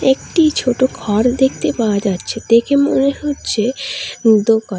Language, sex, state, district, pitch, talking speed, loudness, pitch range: Bengali, female, West Bengal, Alipurduar, 250 Hz, 125 wpm, -15 LUFS, 220-275 Hz